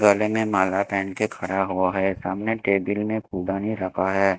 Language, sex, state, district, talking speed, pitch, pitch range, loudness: Hindi, male, Haryana, Jhajjar, 180 wpm, 100 Hz, 95-105 Hz, -24 LUFS